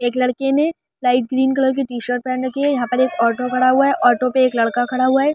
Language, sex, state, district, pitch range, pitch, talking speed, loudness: Hindi, female, Delhi, New Delhi, 245-270 Hz, 255 Hz, 280 wpm, -18 LUFS